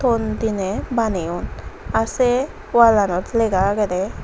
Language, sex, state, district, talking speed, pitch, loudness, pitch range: Chakma, female, Tripura, Unakoti, 115 wpm, 220 Hz, -19 LUFS, 195-235 Hz